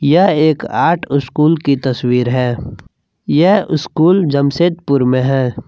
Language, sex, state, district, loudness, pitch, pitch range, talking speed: Hindi, male, Jharkhand, Palamu, -14 LUFS, 140 Hz, 125-160 Hz, 125 wpm